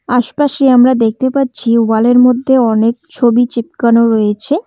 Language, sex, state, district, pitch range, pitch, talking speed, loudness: Bengali, female, West Bengal, Cooch Behar, 230-260 Hz, 245 Hz, 140 wpm, -11 LUFS